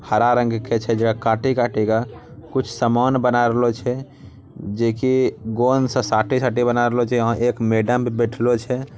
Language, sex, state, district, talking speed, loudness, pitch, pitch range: Angika, male, Bihar, Bhagalpur, 195 wpm, -19 LUFS, 120 Hz, 115-125 Hz